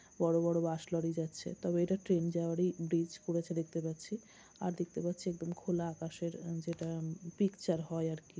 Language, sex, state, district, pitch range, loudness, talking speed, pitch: Bengali, female, West Bengal, Kolkata, 165-175 Hz, -37 LUFS, 215 wpm, 170 Hz